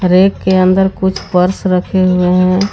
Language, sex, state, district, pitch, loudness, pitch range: Hindi, female, Jharkhand, Garhwa, 185 Hz, -12 LUFS, 180-190 Hz